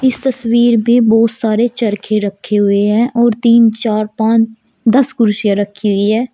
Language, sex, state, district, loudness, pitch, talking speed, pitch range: Hindi, female, Uttar Pradesh, Shamli, -13 LUFS, 225 Hz, 170 wpm, 210-235 Hz